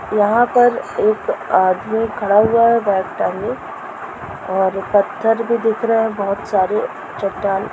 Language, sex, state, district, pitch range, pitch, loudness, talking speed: Hindi, female, Bihar, Purnia, 195-230 Hz, 210 Hz, -17 LUFS, 145 wpm